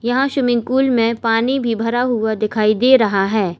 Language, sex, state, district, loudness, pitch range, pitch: Hindi, female, Uttar Pradesh, Lalitpur, -16 LUFS, 220-250 Hz, 230 Hz